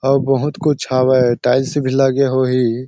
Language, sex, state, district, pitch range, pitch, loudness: Chhattisgarhi, male, Chhattisgarh, Sarguja, 130-135 Hz, 130 Hz, -15 LUFS